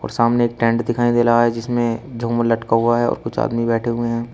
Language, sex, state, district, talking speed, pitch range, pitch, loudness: Hindi, male, Uttar Pradesh, Shamli, 265 wpm, 115-120 Hz, 120 Hz, -18 LUFS